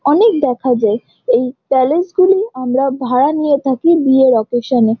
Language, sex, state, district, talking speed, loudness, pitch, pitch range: Bengali, female, West Bengal, Jhargram, 170 wpm, -14 LUFS, 265 Hz, 250-310 Hz